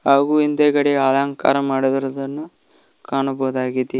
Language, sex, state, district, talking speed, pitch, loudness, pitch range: Kannada, male, Karnataka, Koppal, 75 wpm, 135 Hz, -19 LUFS, 135-145 Hz